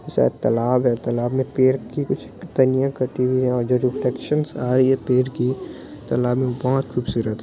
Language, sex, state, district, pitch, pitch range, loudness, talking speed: Hindi, male, Bihar, Muzaffarpur, 125 Hz, 125-130 Hz, -21 LUFS, 195 wpm